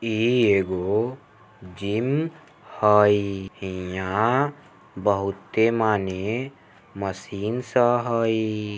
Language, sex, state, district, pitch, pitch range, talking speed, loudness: Maithili, male, Bihar, Samastipur, 105 Hz, 100-120 Hz, 70 wpm, -23 LUFS